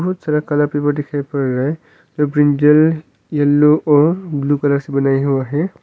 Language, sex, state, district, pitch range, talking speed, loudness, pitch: Hindi, male, Arunachal Pradesh, Longding, 145-155 Hz, 185 wpm, -16 LUFS, 145 Hz